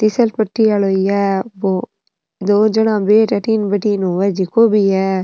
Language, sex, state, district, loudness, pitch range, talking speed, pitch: Rajasthani, female, Rajasthan, Nagaur, -15 LUFS, 195-215 Hz, 150 wpm, 205 Hz